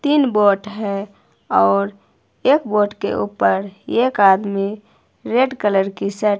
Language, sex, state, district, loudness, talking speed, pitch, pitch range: Hindi, female, Himachal Pradesh, Shimla, -18 LUFS, 130 wpm, 200 Hz, 195-215 Hz